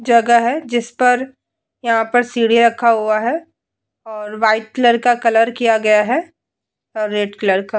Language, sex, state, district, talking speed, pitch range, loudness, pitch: Hindi, female, Uttar Pradesh, Etah, 170 wpm, 215-245 Hz, -15 LUFS, 230 Hz